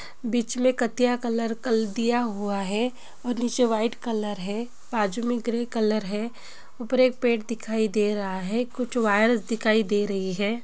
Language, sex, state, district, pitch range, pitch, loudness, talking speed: Hindi, female, Chhattisgarh, Bilaspur, 210-240 Hz, 230 Hz, -25 LUFS, 175 wpm